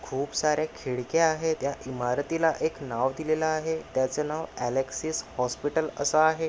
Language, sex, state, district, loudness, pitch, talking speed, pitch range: Marathi, male, Maharashtra, Nagpur, -28 LUFS, 150 Hz, 150 wpm, 130-160 Hz